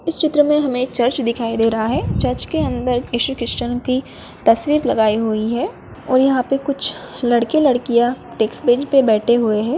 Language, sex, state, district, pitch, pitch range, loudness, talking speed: Hindi, female, Bihar, Madhepura, 245 Hz, 230-270 Hz, -17 LUFS, 190 wpm